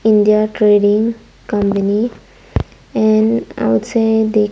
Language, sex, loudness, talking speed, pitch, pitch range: English, female, -15 LUFS, 95 wpm, 215 Hz, 205-220 Hz